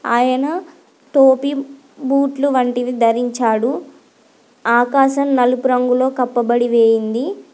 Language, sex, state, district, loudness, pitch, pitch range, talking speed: Telugu, female, Andhra Pradesh, Guntur, -16 LUFS, 255 Hz, 240-275 Hz, 90 wpm